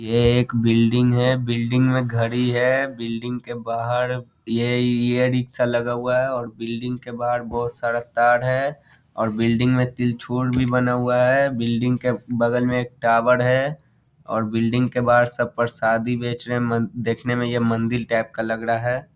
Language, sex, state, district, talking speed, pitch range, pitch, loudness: Hindi, male, Bihar, Muzaffarpur, 175 wpm, 115-125 Hz, 120 Hz, -21 LUFS